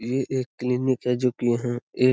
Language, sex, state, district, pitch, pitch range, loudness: Hindi, male, Bihar, Lakhisarai, 125 Hz, 120-130 Hz, -25 LUFS